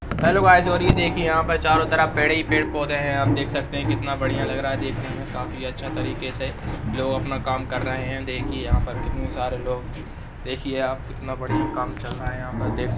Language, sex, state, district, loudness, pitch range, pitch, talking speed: Hindi, female, Maharashtra, Dhule, -23 LUFS, 130-145 Hz, 135 Hz, 255 wpm